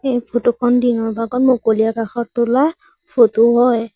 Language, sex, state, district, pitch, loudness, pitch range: Assamese, female, Assam, Sonitpur, 240 Hz, -16 LUFS, 230-250 Hz